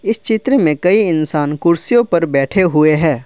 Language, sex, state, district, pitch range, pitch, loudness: Hindi, male, Assam, Kamrup Metropolitan, 155-215 Hz, 170 Hz, -14 LUFS